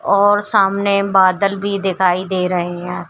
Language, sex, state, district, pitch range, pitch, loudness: Hindi, female, Uttar Pradesh, Shamli, 185-200 Hz, 195 Hz, -16 LUFS